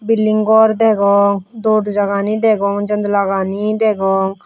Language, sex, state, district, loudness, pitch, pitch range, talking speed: Chakma, female, Tripura, West Tripura, -15 LUFS, 205 Hz, 200-215 Hz, 120 wpm